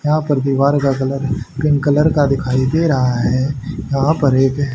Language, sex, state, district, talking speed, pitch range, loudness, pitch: Hindi, male, Haryana, Charkhi Dadri, 190 wpm, 135-145 Hz, -16 LUFS, 140 Hz